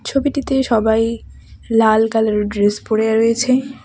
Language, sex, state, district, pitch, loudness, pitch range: Bengali, female, West Bengal, Alipurduar, 225 Hz, -16 LUFS, 220-255 Hz